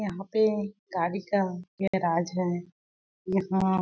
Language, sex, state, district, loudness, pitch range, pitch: Hindi, female, Chhattisgarh, Balrampur, -28 LUFS, 180-200 Hz, 190 Hz